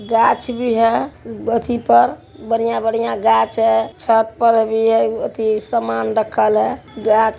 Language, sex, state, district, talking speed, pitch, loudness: Hindi, male, Bihar, Araria, 140 wpm, 220 Hz, -17 LUFS